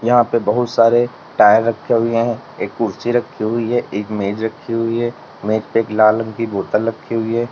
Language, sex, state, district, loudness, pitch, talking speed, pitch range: Hindi, male, Uttar Pradesh, Lalitpur, -17 LUFS, 115 Hz, 215 wpm, 110-120 Hz